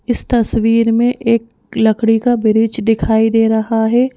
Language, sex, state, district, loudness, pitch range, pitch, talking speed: Hindi, female, Madhya Pradesh, Bhopal, -14 LUFS, 220-230 Hz, 225 Hz, 160 wpm